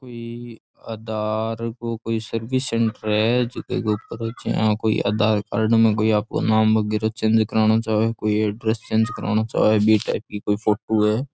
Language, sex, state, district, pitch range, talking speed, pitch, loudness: Rajasthani, male, Rajasthan, Churu, 110-115 Hz, 175 wpm, 110 Hz, -21 LUFS